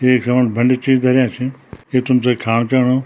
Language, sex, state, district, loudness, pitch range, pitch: Garhwali, male, Uttarakhand, Tehri Garhwal, -16 LUFS, 125-130 Hz, 125 Hz